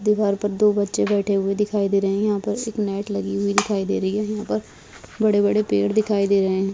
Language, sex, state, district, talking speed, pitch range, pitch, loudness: Hindi, female, Bihar, Purnia, 260 wpm, 195-210 Hz, 205 Hz, -21 LUFS